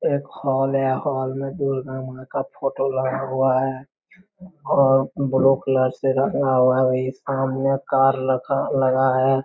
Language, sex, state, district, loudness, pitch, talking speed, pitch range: Hindi, male, Bihar, Jamui, -21 LUFS, 135 Hz, 160 wpm, 130-135 Hz